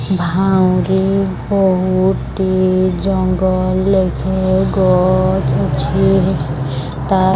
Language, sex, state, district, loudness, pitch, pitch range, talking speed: Odia, male, Odisha, Sambalpur, -15 LUFS, 185 Hz, 135-190 Hz, 65 wpm